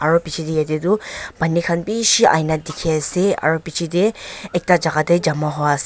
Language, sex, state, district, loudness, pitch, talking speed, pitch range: Nagamese, female, Nagaland, Dimapur, -18 LUFS, 165 Hz, 175 wpm, 155-180 Hz